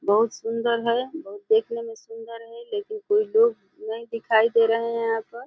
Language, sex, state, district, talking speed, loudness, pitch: Hindi, female, Uttar Pradesh, Deoria, 195 wpm, -24 LUFS, 235 Hz